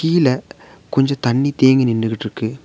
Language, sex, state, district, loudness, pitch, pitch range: Tamil, male, Tamil Nadu, Nilgiris, -17 LUFS, 130 Hz, 115-135 Hz